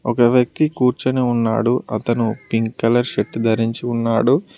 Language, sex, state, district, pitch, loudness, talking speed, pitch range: Telugu, male, Telangana, Mahabubabad, 120 Hz, -18 LUFS, 130 wpm, 115-125 Hz